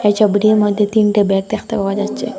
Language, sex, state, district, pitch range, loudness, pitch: Bengali, female, Assam, Hailakandi, 205-215 Hz, -15 LUFS, 210 Hz